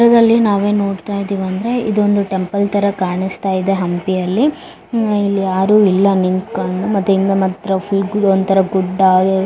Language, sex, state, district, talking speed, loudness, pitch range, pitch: Kannada, female, Karnataka, Bellary, 150 wpm, -15 LUFS, 190-205 Hz, 195 Hz